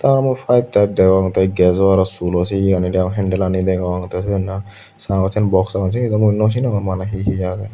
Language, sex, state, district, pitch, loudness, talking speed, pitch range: Chakma, male, Tripura, Dhalai, 95 Hz, -17 LUFS, 225 wpm, 95-105 Hz